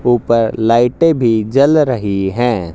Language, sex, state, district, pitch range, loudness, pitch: Hindi, male, Haryana, Jhajjar, 110-130 Hz, -13 LUFS, 120 Hz